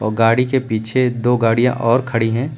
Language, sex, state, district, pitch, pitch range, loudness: Hindi, male, Uttar Pradesh, Lucknow, 120 Hz, 115-125 Hz, -16 LUFS